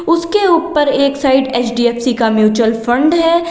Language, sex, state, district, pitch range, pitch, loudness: Hindi, female, Uttar Pradesh, Lalitpur, 240-335 Hz, 275 Hz, -13 LUFS